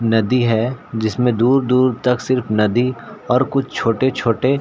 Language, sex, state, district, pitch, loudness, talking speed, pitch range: Hindi, male, Bihar, Saran, 125 Hz, -17 LUFS, 130 wpm, 115-130 Hz